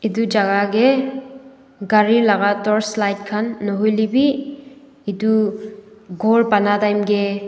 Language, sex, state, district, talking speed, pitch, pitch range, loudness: Nagamese, female, Nagaland, Dimapur, 110 wpm, 215 Hz, 205-235 Hz, -17 LUFS